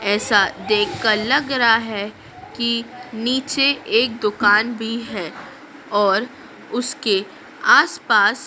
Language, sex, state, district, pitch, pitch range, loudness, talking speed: Hindi, female, Madhya Pradesh, Dhar, 235 Hz, 210-270 Hz, -18 LUFS, 100 wpm